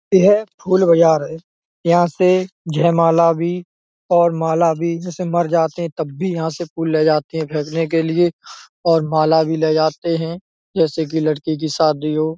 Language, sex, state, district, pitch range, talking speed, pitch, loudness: Hindi, male, Uttar Pradesh, Etah, 160-175 Hz, 185 wpm, 165 Hz, -17 LUFS